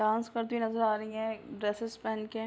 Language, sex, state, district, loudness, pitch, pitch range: Hindi, female, Uttar Pradesh, Hamirpur, -33 LUFS, 220 Hz, 215-230 Hz